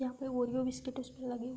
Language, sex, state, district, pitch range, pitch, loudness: Hindi, female, Uttar Pradesh, Gorakhpur, 250-260 Hz, 255 Hz, -37 LUFS